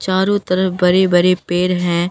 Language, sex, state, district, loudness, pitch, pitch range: Hindi, female, Bihar, Katihar, -15 LUFS, 180 Hz, 180-190 Hz